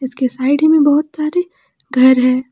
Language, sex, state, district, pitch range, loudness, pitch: Hindi, female, Jharkhand, Palamu, 255-310 Hz, -14 LUFS, 270 Hz